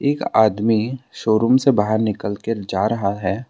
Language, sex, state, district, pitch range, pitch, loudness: Hindi, male, Assam, Sonitpur, 105-120 Hz, 110 Hz, -19 LUFS